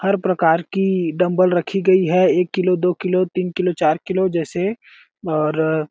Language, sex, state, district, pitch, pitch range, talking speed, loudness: Hindi, male, Chhattisgarh, Balrampur, 180 Hz, 170-185 Hz, 185 wpm, -18 LUFS